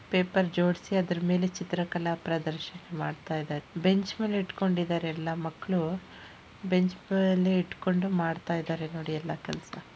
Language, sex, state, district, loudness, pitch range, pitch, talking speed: Kannada, female, Karnataka, Shimoga, -30 LUFS, 165-185 Hz, 175 Hz, 115 wpm